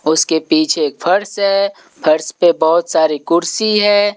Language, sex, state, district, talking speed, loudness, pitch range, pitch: Hindi, male, Delhi, New Delhi, 160 wpm, -14 LUFS, 160-205 Hz, 175 Hz